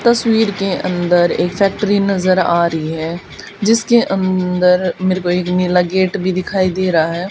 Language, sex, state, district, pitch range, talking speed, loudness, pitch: Hindi, female, Haryana, Charkhi Dadri, 180-195 Hz, 170 wpm, -15 LUFS, 185 Hz